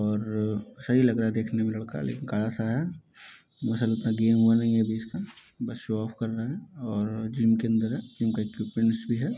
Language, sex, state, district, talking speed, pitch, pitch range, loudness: Hindi, male, Bihar, Muzaffarpur, 230 wpm, 115 Hz, 110-120 Hz, -28 LUFS